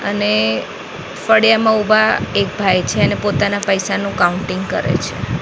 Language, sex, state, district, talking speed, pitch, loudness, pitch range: Gujarati, female, Maharashtra, Mumbai Suburban, 135 wpm, 200 Hz, -15 LUFS, 185-215 Hz